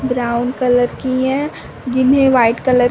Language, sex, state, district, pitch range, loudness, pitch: Hindi, female, Uttar Pradesh, Varanasi, 245-260 Hz, -15 LUFS, 255 Hz